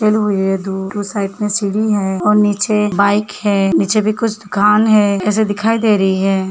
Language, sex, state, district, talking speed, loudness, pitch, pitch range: Hindi, female, Uttar Pradesh, Hamirpur, 175 wpm, -15 LUFS, 205 Hz, 195-215 Hz